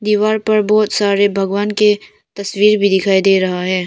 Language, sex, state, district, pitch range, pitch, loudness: Hindi, female, Arunachal Pradesh, Papum Pare, 195-210 Hz, 205 Hz, -14 LUFS